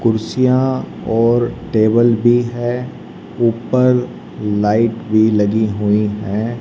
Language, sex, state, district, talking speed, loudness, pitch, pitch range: Hindi, male, Haryana, Rohtak, 100 wpm, -16 LUFS, 115 Hz, 105-120 Hz